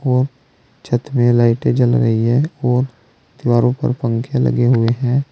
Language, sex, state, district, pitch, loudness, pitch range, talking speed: Hindi, male, Uttar Pradesh, Saharanpur, 120 Hz, -16 LUFS, 115-130 Hz, 160 wpm